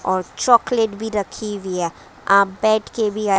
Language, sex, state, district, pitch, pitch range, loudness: Hindi, male, Maharashtra, Mumbai Suburban, 210 Hz, 195-220 Hz, -19 LUFS